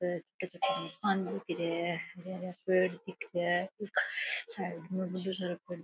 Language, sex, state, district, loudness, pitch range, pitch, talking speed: Rajasthani, female, Rajasthan, Nagaur, -34 LUFS, 175-185 Hz, 180 Hz, 70 wpm